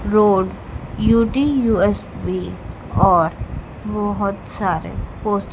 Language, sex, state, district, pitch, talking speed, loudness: Hindi, female, Madhya Pradesh, Dhar, 205 Hz, 85 wpm, -19 LUFS